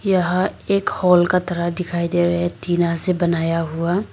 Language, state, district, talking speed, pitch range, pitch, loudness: Hindi, Arunachal Pradesh, Lower Dibang Valley, 190 wpm, 170-180 Hz, 175 Hz, -19 LUFS